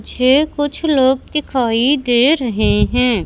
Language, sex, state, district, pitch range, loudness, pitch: Hindi, male, Madhya Pradesh, Katni, 245-290 Hz, -15 LUFS, 260 Hz